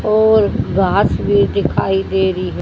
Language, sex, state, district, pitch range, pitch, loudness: Hindi, female, Haryana, Charkhi Dadri, 190-205 Hz, 195 Hz, -15 LUFS